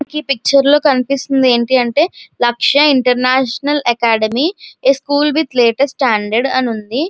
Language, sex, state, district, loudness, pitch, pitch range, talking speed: Telugu, female, Andhra Pradesh, Visakhapatnam, -13 LUFS, 265 Hz, 245-290 Hz, 135 wpm